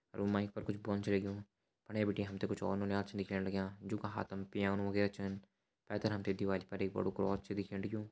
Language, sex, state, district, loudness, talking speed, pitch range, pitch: Hindi, male, Uttarakhand, Uttarkashi, -39 LUFS, 260 wpm, 100-105 Hz, 100 Hz